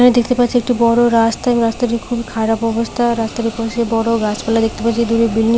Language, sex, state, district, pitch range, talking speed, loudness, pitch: Bengali, female, West Bengal, Paschim Medinipur, 225-240 Hz, 215 wpm, -16 LUFS, 230 Hz